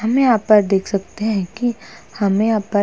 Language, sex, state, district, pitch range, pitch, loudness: Hindi, female, Uttar Pradesh, Hamirpur, 200-225 Hz, 210 Hz, -18 LUFS